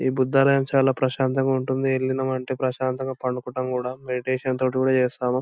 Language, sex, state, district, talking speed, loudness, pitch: Telugu, male, Andhra Pradesh, Anantapur, 165 wpm, -23 LUFS, 130 Hz